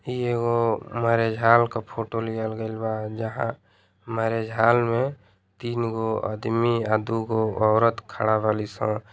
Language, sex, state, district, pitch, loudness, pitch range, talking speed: Bhojpuri, male, Uttar Pradesh, Deoria, 110 Hz, -24 LUFS, 110-115 Hz, 145 wpm